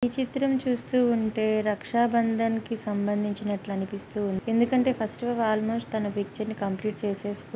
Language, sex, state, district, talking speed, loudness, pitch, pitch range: Telugu, female, Andhra Pradesh, Guntur, 150 wpm, -27 LUFS, 220 Hz, 205-235 Hz